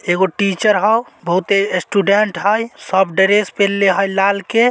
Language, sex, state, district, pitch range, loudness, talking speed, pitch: Magahi, male, Bihar, Samastipur, 190-210 Hz, -15 LUFS, 155 wpm, 200 Hz